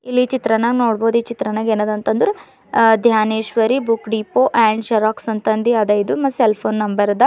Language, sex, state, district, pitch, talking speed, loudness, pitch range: Kannada, female, Karnataka, Bidar, 225 Hz, 180 wpm, -17 LUFS, 215-235 Hz